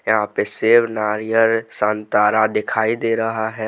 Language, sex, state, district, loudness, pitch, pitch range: Hindi, male, Jharkhand, Deoghar, -18 LUFS, 110 Hz, 105-115 Hz